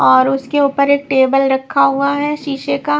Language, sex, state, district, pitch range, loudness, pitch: Hindi, female, Maharashtra, Washim, 270-285 Hz, -14 LUFS, 280 Hz